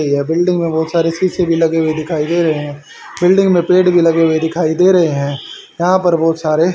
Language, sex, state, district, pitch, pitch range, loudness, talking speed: Hindi, male, Haryana, Rohtak, 165 Hz, 160-175 Hz, -14 LUFS, 250 wpm